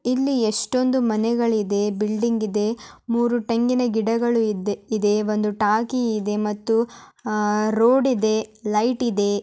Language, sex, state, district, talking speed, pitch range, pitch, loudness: Kannada, male, Karnataka, Dharwad, 115 wpm, 210-235 Hz, 220 Hz, -21 LUFS